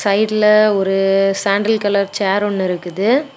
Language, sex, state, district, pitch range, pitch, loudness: Tamil, female, Tamil Nadu, Kanyakumari, 195-215 Hz, 200 Hz, -15 LUFS